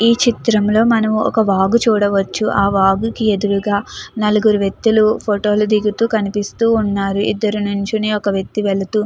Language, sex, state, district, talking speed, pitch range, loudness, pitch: Telugu, female, Andhra Pradesh, Chittoor, 140 wpm, 200-220 Hz, -16 LUFS, 210 Hz